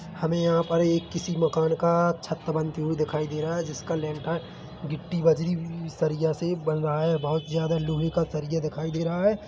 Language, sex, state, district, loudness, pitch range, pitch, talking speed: Hindi, male, Chhattisgarh, Bilaspur, -26 LUFS, 155-170 Hz, 165 Hz, 200 wpm